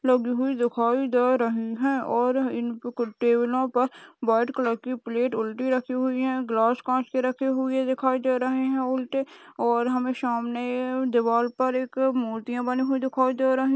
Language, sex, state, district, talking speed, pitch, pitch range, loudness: Hindi, female, Maharashtra, Aurangabad, 165 wpm, 255 Hz, 240-260 Hz, -25 LUFS